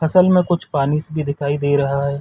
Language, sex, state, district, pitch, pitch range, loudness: Hindi, male, Chhattisgarh, Sarguja, 145 Hz, 140-160 Hz, -18 LUFS